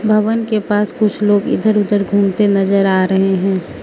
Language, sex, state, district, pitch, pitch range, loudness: Hindi, female, Manipur, Imphal West, 205 Hz, 195-210 Hz, -14 LUFS